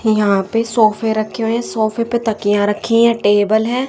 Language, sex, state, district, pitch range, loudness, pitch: Hindi, female, Haryana, Rohtak, 210-230 Hz, -15 LUFS, 220 Hz